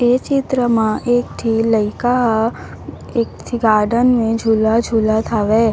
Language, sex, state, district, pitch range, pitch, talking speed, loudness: Chhattisgarhi, female, Chhattisgarh, Raigarh, 220-245 Hz, 230 Hz, 155 wpm, -16 LUFS